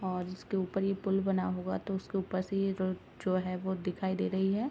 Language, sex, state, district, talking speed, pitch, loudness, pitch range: Hindi, female, Uttar Pradesh, Ghazipur, 240 wpm, 190 Hz, -33 LUFS, 185-195 Hz